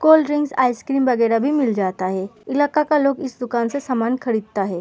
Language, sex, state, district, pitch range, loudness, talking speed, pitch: Hindi, female, Uttar Pradesh, Muzaffarnagar, 225-280 Hz, -20 LUFS, 225 wpm, 250 Hz